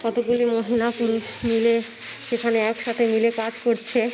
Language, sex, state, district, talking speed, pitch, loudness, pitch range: Bengali, female, West Bengal, North 24 Parganas, 130 wpm, 230 Hz, -22 LUFS, 225-235 Hz